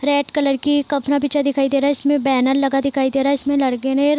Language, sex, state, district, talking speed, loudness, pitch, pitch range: Hindi, female, Bihar, Sitamarhi, 285 wpm, -18 LUFS, 280 Hz, 270-285 Hz